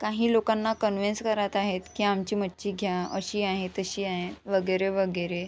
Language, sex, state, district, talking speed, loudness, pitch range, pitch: Marathi, female, Maharashtra, Sindhudurg, 155 wpm, -28 LUFS, 190-210 Hz, 195 Hz